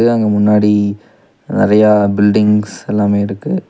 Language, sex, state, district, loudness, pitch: Tamil, male, Tamil Nadu, Nilgiris, -13 LUFS, 105 Hz